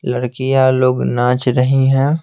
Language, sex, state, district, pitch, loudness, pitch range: Hindi, male, Bihar, Patna, 130 Hz, -15 LUFS, 125-135 Hz